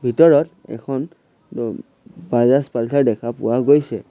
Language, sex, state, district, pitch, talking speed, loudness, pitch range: Assamese, male, Assam, Sonitpur, 130 Hz, 115 wpm, -18 LUFS, 120-145 Hz